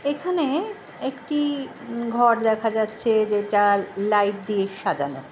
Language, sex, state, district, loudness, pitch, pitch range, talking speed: Bengali, female, West Bengal, Jhargram, -23 LUFS, 220 Hz, 205-275 Hz, 115 wpm